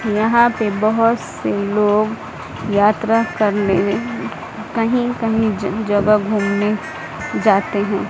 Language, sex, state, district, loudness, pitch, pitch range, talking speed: Hindi, female, Bihar, West Champaran, -17 LUFS, 215 Hz, 205-225 Hz, 105 wpm